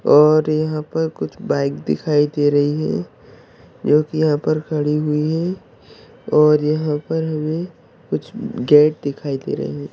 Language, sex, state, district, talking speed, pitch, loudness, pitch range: Hindi, male, Maharashtra, Sindhudurg, 150 wpm, 150 Hz, -18 LUFS, 145-155 Hz